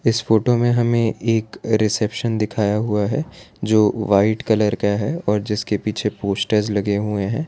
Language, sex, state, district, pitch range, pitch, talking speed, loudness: Hindi, male, Gujarat, Valsad, 105-115 Hz, 110 Hz, 170 wpm, -19 LUFS